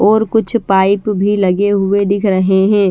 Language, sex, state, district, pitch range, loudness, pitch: Hindi, female, Haryana, Charkhi Dadri, 195-210 Hz, -13 LUFS, 200 Hz